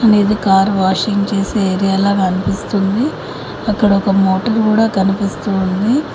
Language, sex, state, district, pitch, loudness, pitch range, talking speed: Telugu, female, Telangana, Mahabubabad, 200 Hz, -15 LUFS, 195-210 Hz, 125 wpm